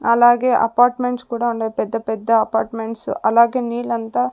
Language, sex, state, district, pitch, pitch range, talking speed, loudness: Telugu, female, Andhra Pradesh, Sri Satya Sai, 235 Hz, 225-240 Hz, 125 wpm, -18 LUFS